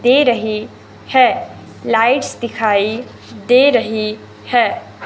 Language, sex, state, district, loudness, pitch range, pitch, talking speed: Hindi, male, Himachal Pradesh, Shimla, -15 LUFS, 215-250 Hz, 235 Hz, 95 wpm